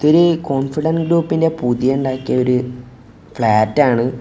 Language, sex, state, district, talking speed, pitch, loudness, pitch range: Malayalam, male, Kerala, Kozhikode, 115 wpm, 130 Hz, -16 LUFS, 125-160 Hz